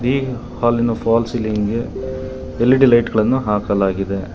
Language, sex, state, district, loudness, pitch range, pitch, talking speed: Kannada, male, Karnataka, Bangalore, -17 LUFS, 105-130 Hz, 120 Hz, 125 wpm